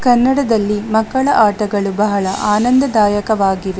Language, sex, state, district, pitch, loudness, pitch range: Kannada, female, Karnataka, Dakshina Kannada, 210 Hz, -14 LUFS, 205-240 Hz